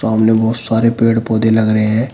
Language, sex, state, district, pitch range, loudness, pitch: Hindi, male, Uttar Pradesh, Shamli, 110-115 Hz, -13 LUFS, 110 Hz